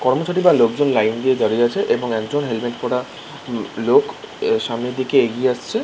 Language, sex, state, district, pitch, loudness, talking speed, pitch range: Bengali, male, West Bengal, Kolkata, 130 Hz, -19 LUFS, 175 wpm, 120-145 Hz